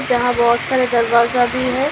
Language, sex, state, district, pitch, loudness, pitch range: Hindi, female, Maharashtra, Chandrapur, 245 Hz, -15 LUFS, 235-255 Hz